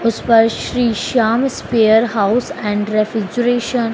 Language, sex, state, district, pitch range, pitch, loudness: Hindi, female, Madhya Pradesh, Dhar, 220-245 Hz, 230 Hz, -16 LUFS